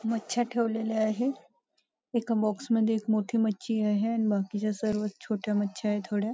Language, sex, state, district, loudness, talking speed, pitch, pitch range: Marathi, female, Maharashtra, Nagpur, -29 LUFS, 160 wpm, 220 Hz, 210-230 Hz